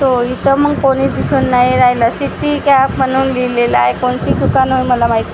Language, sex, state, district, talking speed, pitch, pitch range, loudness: Marathi, female, Maharashtra, Gondia, 200 wpm, 255 Hz, 245-270 Hz, -13 LUFS